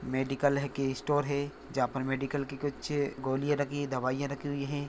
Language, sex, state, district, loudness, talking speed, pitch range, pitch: Hindi, male, Maharashtra, Nagpur, -32 LUFS, 195 wpm, 135-145 Hz, 140 Hz